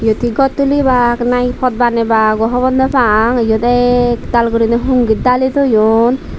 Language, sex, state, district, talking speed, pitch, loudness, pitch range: Chakma, female, Tripura, Dhalai, 180 wpm, 245 Hz, -12 LUFS, 230-255 Hz